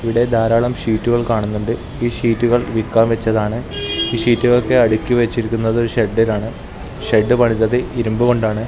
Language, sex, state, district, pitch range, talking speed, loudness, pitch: Malayalam, male, Kerala, Kasaragod, 110-120 Hz, 125 wpm, -16 LUFS, 115 Hz